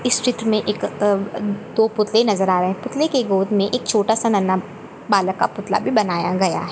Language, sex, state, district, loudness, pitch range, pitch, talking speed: Hindi, female, Goa, North and South Goa, -19 LUFS, 190-225 Hz, 205 Hz, 225 wpm